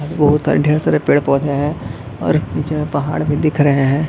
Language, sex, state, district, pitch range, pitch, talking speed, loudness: Hindi, male, Chhattisgarh, Bilaspur, 140-150 Hz, 145 Hz, 235 wpm, -16 LUFS